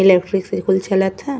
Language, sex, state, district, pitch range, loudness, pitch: Bhojpuri, female, Uttar Pradesh, Ghazipur, 190-195 Hz, -18 LUFS, 190 Hz